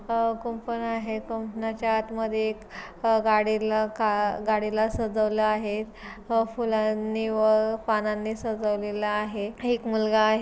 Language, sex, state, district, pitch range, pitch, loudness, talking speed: Marathi, female, Maharashtra, Pune, 215-225 Hz, 220 Hz, -26 LUFS, 125 wpm